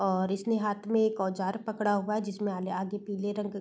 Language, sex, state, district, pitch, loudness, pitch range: Hindi, female, Uttar Pradesh, Varanasi, 205 Hz, -31 LUFS, 195-210 Hz